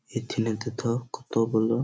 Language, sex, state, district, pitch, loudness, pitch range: Bengali, male, West Bengal, Malda, 115 Hz, -28 LUFS, 110-120 Hz